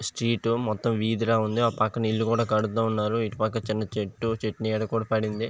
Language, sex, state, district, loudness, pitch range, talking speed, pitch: Telugu, male, Andhra Pradesh, Visakhapatnam, -26 LUFS, 110-115 Hz, 175 wpm, 110 Hz